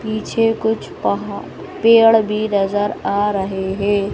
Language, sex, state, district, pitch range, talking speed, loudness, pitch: Hindi, male, Madhya Pradesh, Bhopal, 200-220 Hz, 130 wpm, -17 LUFS, 210 Hz